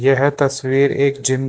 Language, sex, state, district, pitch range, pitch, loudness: Hindi, male, Karnataka, Bangalore, 135-140 Hz, 140 Hz, -17 LUFS